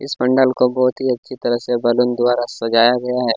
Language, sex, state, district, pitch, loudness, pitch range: Hindi, male, Chhattisgarh, Kabirdham, 125 Hz, -17 LUFS, 120-130 Hz